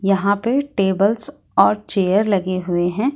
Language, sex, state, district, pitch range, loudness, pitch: Hindi, female, Jharkhand, Ranchi, 190-225 Hz, -18 LUFS, 200 Hz